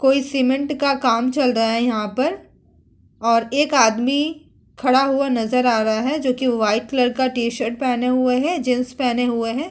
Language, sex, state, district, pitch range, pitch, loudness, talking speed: Hindi, female, Uttar Pradesh, Muzaffarnagar, 235-275 Hz, 255 Hz, -19 LUFS, 190 wpm